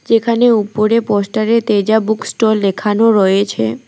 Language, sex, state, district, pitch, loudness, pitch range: Bengali, female, West Bengal, Alipurduar, 215 Hz, -14 LUFS, 205-225 Hz